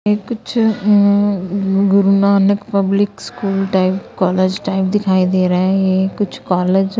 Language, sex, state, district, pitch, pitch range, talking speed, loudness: Hindi, female, Punjab, Kapurthala, 195 Hz, 190-205 Hz, 145 wpm, -15 LUFS